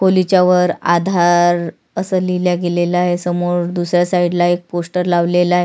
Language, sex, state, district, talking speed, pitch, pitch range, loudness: Marathi, female, Maharashtra, Sindhudurg, 150 wpm, 175 Hz, 175-180 Hz, -15 LUFS